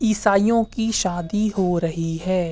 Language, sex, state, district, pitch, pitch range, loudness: Hindi, male, Uttar Pradesh, Hamirpur, 195 Hz, 175-220 Hz, -21 LUFS